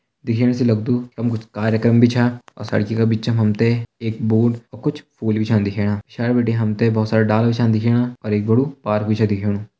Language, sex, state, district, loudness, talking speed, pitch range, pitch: Hindi, male, Uttarakhand, Tehri Garhwal, -19 LUFS, 240 wpm, 110-120 Hz, 115 Hz